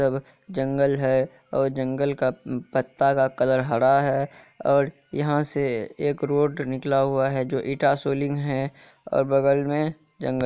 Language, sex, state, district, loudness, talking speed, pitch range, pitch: Hindi, male, Bihar, Kishanganj, -24 LUFS, 160 wpm, 135-140 Hz, 140 Hz